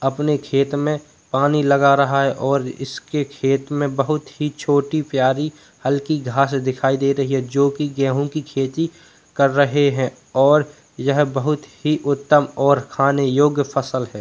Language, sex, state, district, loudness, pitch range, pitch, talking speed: Hindi, male, Uttar Pradesh, Jalaun, -19 LUFS, 135-150 Hz, 140 Hz, 160 wpm